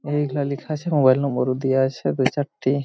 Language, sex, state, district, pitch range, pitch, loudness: Bengali, male, Jharkhand, Jamtara, 130-145 Hz, 140 Hz, -21 LUFS